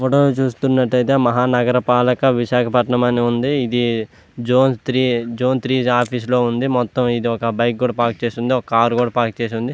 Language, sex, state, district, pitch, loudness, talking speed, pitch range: Telugu, male, Andhra Pradesh, Visakhapatnam, 125 Hz, -17 LUFS, 180 wpm, 120-130 Hz